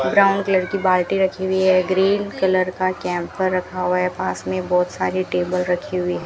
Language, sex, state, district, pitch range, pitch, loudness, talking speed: Hindi, female, Rajasthan, Bikaner, 180-190 Hz, 185 Hz, -20 LUFS, 210 wpm